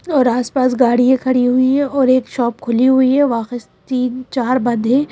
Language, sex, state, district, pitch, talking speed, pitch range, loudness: Hindi, female, Madhya Pradesh, Bhopal, 255 Hz, 190 wpm, 245-260 Hz, -15 LUFS